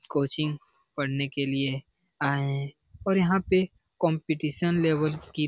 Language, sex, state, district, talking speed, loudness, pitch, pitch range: Hindi, male, Bihar, Jamui, 140 wpm, -27 LUFS, 155 Hz, 140-175 Hz